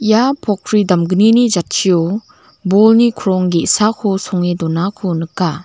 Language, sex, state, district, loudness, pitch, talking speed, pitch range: Garo, female, Meghalaya, West Garo Hills, -14 LUFS, 190 Hz, 105 wpm, 175-215 Hz